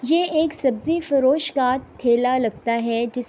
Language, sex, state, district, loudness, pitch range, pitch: Urdu, female, Andhra Pradesh, Anantapur, -21 LUFS, 240-305 Hz, 255 Hz